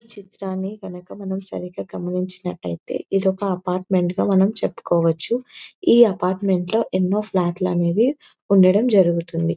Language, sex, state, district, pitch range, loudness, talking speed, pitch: Telugu, female, Telangana, Nalgonda, 180-200 Hz, -20 LUFS, 125 wpm, 185 Hz